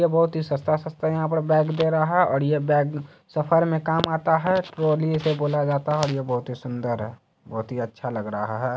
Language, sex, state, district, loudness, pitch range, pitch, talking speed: Hindi, male, Bihar, Saharsa, -23 LUFS, 130-160 Hz, 150 Hz, 235 wpm